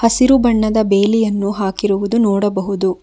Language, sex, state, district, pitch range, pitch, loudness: Kannada, female, Karnataka, Bangalore, 195-225 Hz, 205 Hz, -15 LUFS